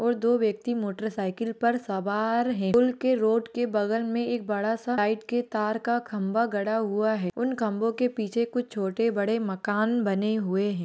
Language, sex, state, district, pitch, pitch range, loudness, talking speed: Hindi, female, Bihar, Jahanabad, 220 Hz, 205-235 Hz, -27 LUFS, 180 wpm